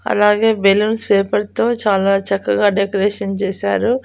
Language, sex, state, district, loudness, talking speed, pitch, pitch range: Telugu, female, Andhra Pradesh, Annamaya, -16 LUFS, 120 wpm, 200 Hz, 195-215 Hz